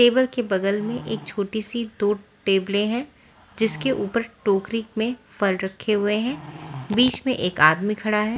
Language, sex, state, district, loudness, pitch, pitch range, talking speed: Hindi, female, Bihar, Patna, -22 LUFS, 210 Hz, 195-230 Hz, 170 wpm